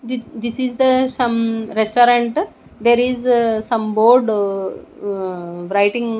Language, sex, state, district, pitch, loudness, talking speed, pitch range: English, female, Odisha, Nuapada, 235 Hz, -17 LUFS, 135 wpm, 215-245 Hz